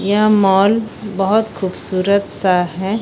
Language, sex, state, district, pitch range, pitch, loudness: Hindi, female, Bihar, Katihar, 190-210 Hz, 200 Hz, -16 LUFS